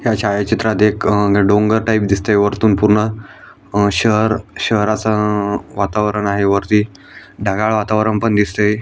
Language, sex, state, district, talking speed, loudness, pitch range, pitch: Marathi, male, Maharashtra, Aurangabad, 115 wpm, -15 LUFS, 100-110 Hz, 105 Hz